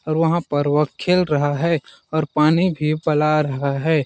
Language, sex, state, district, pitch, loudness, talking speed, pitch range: Hindi, male, Chhattisgarh, Balrampur, 155 Hz, -19 LUFS, 190 wpm, 145-160 Hz